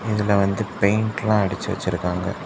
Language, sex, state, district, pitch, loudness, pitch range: Tamil, male, Tamil Nadu, Kanyakumari, 100 Hz, -22 LUFS, 95-105 Hz